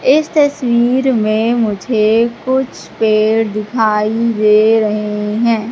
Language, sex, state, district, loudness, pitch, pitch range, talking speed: Hindi, female, Madhya Pradesh, Katni, -14 LUFS, 225 Hz, 215-240 Hz, 105 wpm